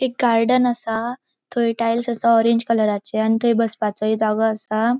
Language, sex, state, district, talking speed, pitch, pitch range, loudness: Konkani, female, Goa, North and South Goa, 155 wpm, 230 Hz, 220-240 Hz, -19 LUFS